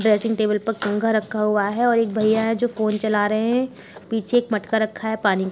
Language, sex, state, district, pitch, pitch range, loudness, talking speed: Hindi, female, Uttar Pradesh, Jalaun, 220 Hz, 210-225 Hz, -21 LUFS, 250 wpm